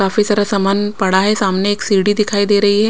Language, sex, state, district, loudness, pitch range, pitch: Hindi, female, Maharashtra, Washim, -14 LUFS, 195-210 Hz, 205 Hz